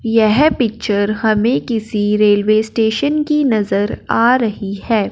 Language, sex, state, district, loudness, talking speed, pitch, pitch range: Hindi, male, Punjab, Fazilka, -15 LUFS, 130 wpm, 220 Hz, 210-240 Hz